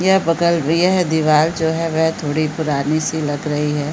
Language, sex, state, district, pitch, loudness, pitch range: Hindi, female, Chhattisgarh, Balrampur, 160 Hz, -17 LUFS, 150-165 Hz